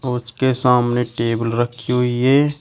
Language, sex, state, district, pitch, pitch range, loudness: Hindi, male, Uttar Pradesh, Shamli, 125 Hz, 120-130 Hz, -17 LUFS